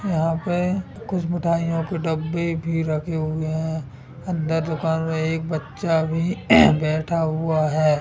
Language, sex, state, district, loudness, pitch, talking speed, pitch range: Hindi, male, Bihar, Sitamarhi, -22 LUFS, 160 Hz, 140 wpm, 155-170 Hz